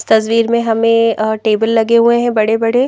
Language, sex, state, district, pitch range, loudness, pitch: Hindi, female, Madhya Pradesh, Bhopal, 220-235 Hz, -13 LUFS, 230 Hz